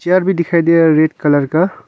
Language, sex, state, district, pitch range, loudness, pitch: Hindi, male, Arunachal Pradesh, Longding, 155-180 Hz, -13 LUFS, 170 Hz